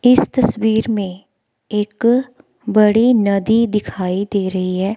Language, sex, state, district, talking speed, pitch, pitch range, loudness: Hindi, female, Himachal Pradesh, Shimla, 120 wpm, 210 Hz, 195-235 Hz, -16 LUFS